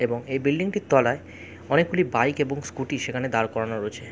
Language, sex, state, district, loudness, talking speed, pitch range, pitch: Bengali, male, West Bengal, Jalpaiguri, -25 LUFS, 205 wpm, 115-145 Hz, 135 Hz